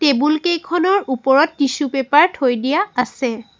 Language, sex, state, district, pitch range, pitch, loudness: Assamese, female, Assam, Sonitpur, 260-320 Hz, 285 Hz, -17 LUFS